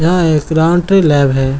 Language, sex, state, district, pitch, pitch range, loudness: Hindi, male, Bihar, Lakhisarai, 160 Hz, 140-175 Hz, -12 LUFS